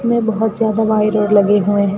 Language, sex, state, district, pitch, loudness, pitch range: Hindi, female, Rajasthan, Bikaner, 215 Hz, -15 LUFS, 205-220 Hz